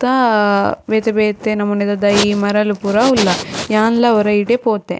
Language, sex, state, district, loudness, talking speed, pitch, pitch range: Tulu, female, Karnataka, Dakshina Kannada, -15 LUFS, 145 wpm, 210 Hz, 205-225 Hz